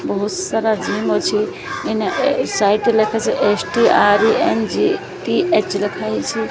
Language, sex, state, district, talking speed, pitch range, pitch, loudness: Odia, female, Odisha, Sambalpur, 90 wpm, 200-220 Hz, 215 Hz, -17 LUFS